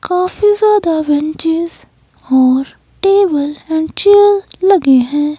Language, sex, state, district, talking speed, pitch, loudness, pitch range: Hindi, female, Himachal Pradesh, Shimla, 100 wpm, 325 Hz, -12 LUFS, 295-390 Hz